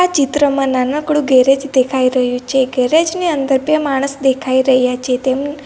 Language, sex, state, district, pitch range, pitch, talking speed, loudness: Gujarati, female, Gujarat, Valsad, 260-290 Hz, 270 Hz, 170 wpm, -14 LUFS